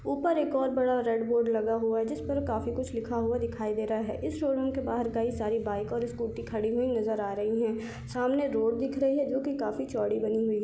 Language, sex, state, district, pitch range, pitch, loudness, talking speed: Hindi, female, Chhattisgarh, Sarguja, 220-260 Hz, 230 Hz, -30 LUFS, 260 wpm